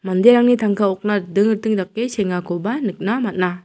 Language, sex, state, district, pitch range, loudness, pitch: Garo, female, Meghalaya, South Garo Hills, 190-225 Hz, -18 LUFS, 205 Hz